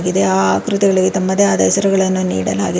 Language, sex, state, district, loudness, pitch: Kannada, female, Karnataka, Bangalore, -15 LUFS, 185 Hz